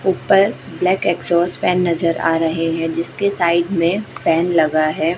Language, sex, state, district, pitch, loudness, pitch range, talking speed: Hindi, female, Chhattisgarh, Raipur, 170 Hz, -17 LUFS, 165-180 Hz, 160 wpm